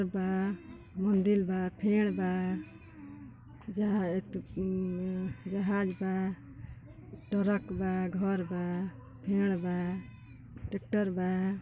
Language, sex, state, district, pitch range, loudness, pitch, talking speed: Bhojpuri, female, Uttar Pradesh, Ghazipur, 180-195 Hz, -33 LUFS, 185 Hz, 75 wpm